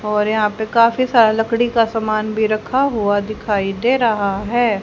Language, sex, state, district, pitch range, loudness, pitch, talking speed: Hindi, female, Haryana, Rohtak, 210-235 Hz, -17 LUFS, 220 Hz, 185 wpm